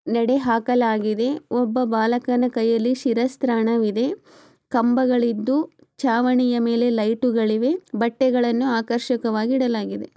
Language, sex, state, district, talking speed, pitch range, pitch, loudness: Kannada, female, Karnataka, Chamarajanagar, 75 wpm, 230-250 Hz, 240 Hz, -21 LUFS